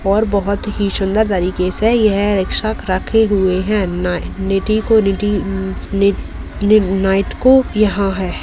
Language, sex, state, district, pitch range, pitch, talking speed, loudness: Hindi, female, Bihar, Purnia, 190-215 Hz, 200 Hz, 150 wpm, -16 LUFS